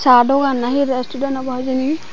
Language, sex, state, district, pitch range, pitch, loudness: Chakma, female, Tripura, Dhalai, 255-275 Hz, 265 Hz, -17 LUFS